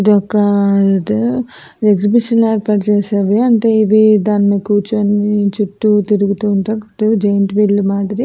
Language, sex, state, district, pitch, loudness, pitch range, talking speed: Telugu, female, Andhra Pradesh, Anantapur, 210 Hz, -13 LUFS, 200-215 Hz, 155 wpm